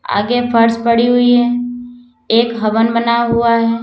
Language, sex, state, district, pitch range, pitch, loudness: Hindi, female, Uttar Pradesh, Lalitpur, 230-245 Hz, 235 Hz, -13 LUFS